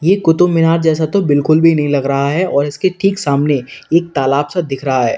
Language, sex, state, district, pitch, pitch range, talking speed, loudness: Hindi, male, Uttar Pradesh, Lalitpur, 155 Hz, 140-170 Hz, 230 wpm, -14 LUFS